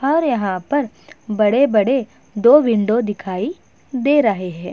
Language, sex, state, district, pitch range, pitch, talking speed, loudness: Hindi, female, Uttar Pradesh, Budaun, 210-285 Hz, 235 Hz, 125 wpm, -17 LUFS